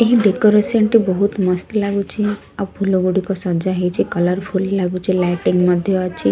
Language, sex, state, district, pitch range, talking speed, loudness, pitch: Odia, female, Odisha, Sambalpur, 180-205 Hz, 150 wpm, -17 LUFS, 190 Hz